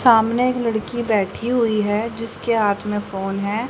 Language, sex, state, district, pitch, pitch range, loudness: Hindi, female, Haryana, Jhajjar, 225 Hz, 205-235 Hz, -20 LUFS